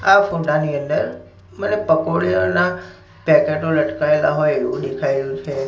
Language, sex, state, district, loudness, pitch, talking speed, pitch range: Gujarati, male, Gujarat, Gandhinagar, -18 LUFS, 160 Hz, 135 wpm, 145-200 Hz